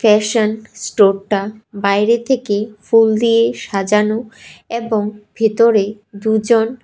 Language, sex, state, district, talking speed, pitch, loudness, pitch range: Bengali, female, Tripura, West Tripura, 90 wpm, 215 Hz, -16 LUFS, 205-225 Hz